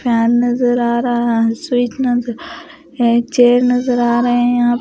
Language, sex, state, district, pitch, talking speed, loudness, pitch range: Hindi, female, Bihar, West Champaran, 245 Hz, 200 wpm, -14 LUFS, 235-245 Hz